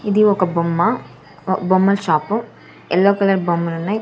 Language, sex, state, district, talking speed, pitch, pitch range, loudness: Telugu, female, Andhra Pradesh, Sri Satya Sai, 135 wpm, 190 Hz, 170-205 Hz, -17 LUFS